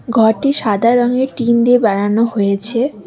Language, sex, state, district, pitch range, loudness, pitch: Bengali, female, West Bengal, Alipurduar, 215-245 Hz, -13 LUFS, 235 Hz